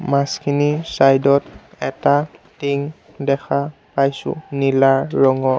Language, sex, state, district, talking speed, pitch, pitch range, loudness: Assamese, male, Assam, Sonitpur, 95 wpm, 140 Hz, 135-145 Hz, -18 LUFS